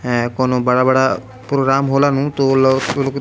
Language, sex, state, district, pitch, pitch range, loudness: Bhojpuri, male, Bihar, Muzaffarpur, 130 Hz, 125-135 Hz, -16 LUFS